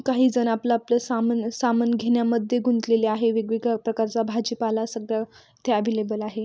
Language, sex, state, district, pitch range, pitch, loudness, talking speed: Marathi, female, Maharashtra, Sindhudurg, 225-235 Hz, 230 Hz, -24 LUFS, 140 wpm